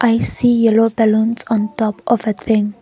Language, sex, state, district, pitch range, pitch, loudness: English, female, Nagaland, Kohima, 215-230 Hz, 225 Hz, -16 LUFS